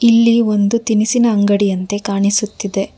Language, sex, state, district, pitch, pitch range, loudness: Kannada, female, Karnataka, Bangalore, 210 Hz, 200-230 Hz, -15 LUFS